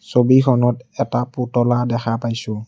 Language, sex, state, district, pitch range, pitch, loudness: Assamese, male, Assam, Kamrup Metropolitan, 115-125 Hz, 120 Hz, -18 LUFS